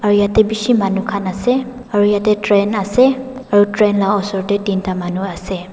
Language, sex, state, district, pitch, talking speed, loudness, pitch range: Nagamese, female, Nagaland, Dimapur, 205 Hz, 200 wpm, -16 LUFS, 195-215 Hz